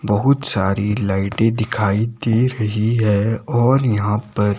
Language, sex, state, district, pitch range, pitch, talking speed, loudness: Hindi, male, Himachal Pradesh, Shimla, 105-115 Hz, 110 Hz, 130 wpm, -17 LUFS